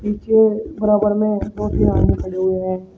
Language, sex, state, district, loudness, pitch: Hindi, male, Uttar Pradesh, Shamli, -18 LUFS, 185 Hz